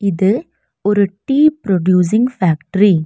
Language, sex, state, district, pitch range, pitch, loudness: Tamil, female, Tamil Nadu, Nilgiris, 185-220 Hz, 195 Hz, -15 LUFS